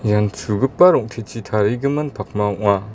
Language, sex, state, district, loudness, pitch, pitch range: Garo, male, Meghalaya, West Garo Hills, -18 LUFS, 105 Hz, 105-130 Hz